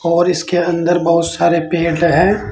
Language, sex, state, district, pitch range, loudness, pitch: Hindi, male, Uttar Pradesh, Saharanpur, 170-175 Hz, -14 LUFS, 170 Hz